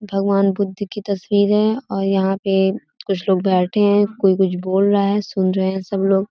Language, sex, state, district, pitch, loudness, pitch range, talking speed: Hindi, female, Uttar Pradesh, Gorakhpur, 195 Hz, -18 LUFS, 190-205 Hz, 210 wpm